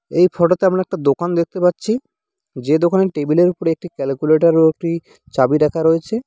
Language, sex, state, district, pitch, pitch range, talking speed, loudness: Bengali, male, West Bengal, Cooch Behar, 170 Hz, 155-185 Hz, 190 wpm, -17 LUFS